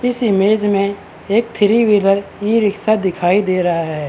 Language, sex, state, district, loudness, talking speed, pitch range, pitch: Hindi, male, Uttarakhand, Uttarkashi, -15 LUFS, 175 wpm, 190-215 Hz, 200 Hz